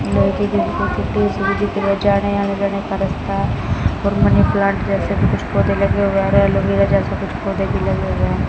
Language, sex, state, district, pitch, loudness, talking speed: Hindi, female, Haryana, Jhajjar, 100 Hz, -17 LUFS, 155 wpm